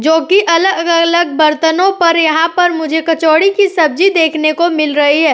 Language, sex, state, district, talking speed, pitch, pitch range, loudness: Hindi, female, Uttar Pradesh, Etah, 180 wpm, 330 Hz, 315-345 Hz, -11 LUFS